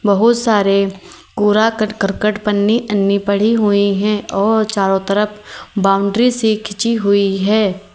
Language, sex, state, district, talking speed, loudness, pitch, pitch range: Hindi, female, Uttar Pradesh, Lalitpur, 135 wpm, -15 LUFS, 210 Hz, 200-215 Hz